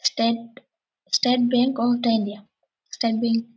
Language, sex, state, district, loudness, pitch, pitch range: Bengali, female, West Bengal, Purulia, -22 LUFS, 235 Hz, 230-250 Hz